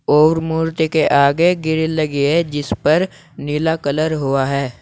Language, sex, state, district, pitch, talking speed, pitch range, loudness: Hindi, male, Uttar Pradesh, Saharanpur, 155 Hz, 160 wpm, 140-160 Hz, -17 LUFS